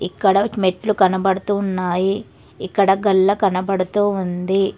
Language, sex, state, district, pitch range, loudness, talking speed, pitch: Telugu, female, Telangana, Hyderabad, 190-200 Hz, -18 LUFS, 75 wpm, 195 Hz